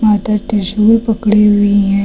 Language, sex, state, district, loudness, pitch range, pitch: Hindi, female, Uttar Pradesh, Lucknow, -12 LUFS, 205-215 Hz, 210 Hz